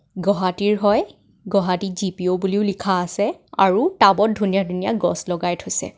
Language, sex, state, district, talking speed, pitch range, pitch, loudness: Assamese, female, Assam, Kamrup Metropolitan, 150 wpm, 180-205 Hz, 195 Hz, -20 LUFS